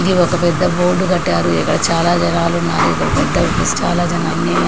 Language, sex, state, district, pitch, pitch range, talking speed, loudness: Telugu, female, Andhra Pradesh, Srikakulam, 180 Hz, 175-180 Hz, 245 wpm, -15 LUFS